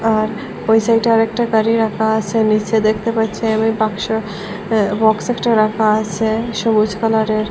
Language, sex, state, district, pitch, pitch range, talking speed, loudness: Bengali, female, Assam, Hailakandi, 220 Hz, 215-225 Hz, 150 wpm, -16 LUFS